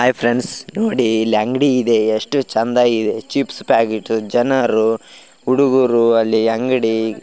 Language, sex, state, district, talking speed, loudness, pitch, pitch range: Kannada, male, Karnataka, Raichur, 125 wpm, -16 LUFS, 115 Hz, 110-130 Hz